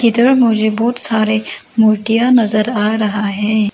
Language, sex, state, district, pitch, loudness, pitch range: Hindi, female, Arunachal Pradesh, Lower Dibang Valley, 220 Hz, -14 LUFS, 215-235 Hz